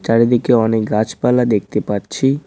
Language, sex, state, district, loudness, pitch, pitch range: Bengali, male, West Bengal, Cooch Behar, -16 LUFS, 115 Hz, 105-120 Hz